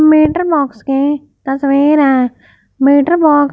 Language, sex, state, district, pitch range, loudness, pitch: Hindi, female, Punjab, Fazilka, 275-310 Hz, -12 LUFS, 285 Hz